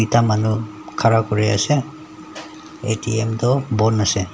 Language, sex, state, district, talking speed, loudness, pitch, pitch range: Nagamese, male, Nagaland, Dimapur, 125 wpm, -19 LUFS, 110 Hz, 110-130 Hz